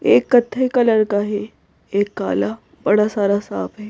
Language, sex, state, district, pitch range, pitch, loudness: Hindi, female, Madhya Pradesh, Bhopal, 200-235 Hz, 210 Hz, -18 LUFS